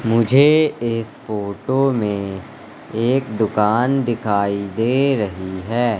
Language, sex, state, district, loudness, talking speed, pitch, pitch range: Hindi, male, Madhya Pradesh, Katni, -19 LUFS, 100 wpm, 115 Hz, 105-130 Hz